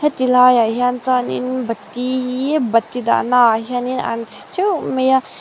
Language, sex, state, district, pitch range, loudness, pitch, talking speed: Mizo, female, Mizoram, Aizawl, 235-255 Hz, -17 LUFS, 250 Hz, 200 wpm